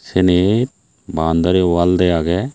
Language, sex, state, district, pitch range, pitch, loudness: Chakma, male, Tripura, Unakoti, 85-95 Hz, 90 Hz, -16 LUFS